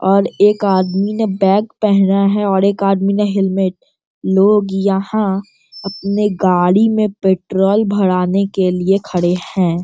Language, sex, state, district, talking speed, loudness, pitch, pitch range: Hindi, male, Bihar, Sitamarhi, 140 wpm, -15 LUFS, 195 Hz, 190-205 Hz